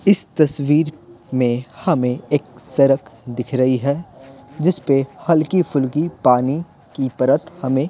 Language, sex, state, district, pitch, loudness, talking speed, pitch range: Hindi, male, Bihar, Patna, 140 Hz, -19 LUFS, 130 wpm, 130-160 Hz